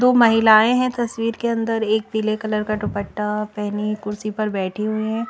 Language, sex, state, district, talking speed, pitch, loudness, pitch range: Hindi, female, Bihar, Katihar, 190 wpm, 215 Hz, -20 LUFS, 210-225 Hz